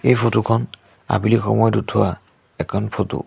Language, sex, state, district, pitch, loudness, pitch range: Assamese, male, Assam, Sonitpur, 110 Hz, -19 LUFS, 100-115 Hz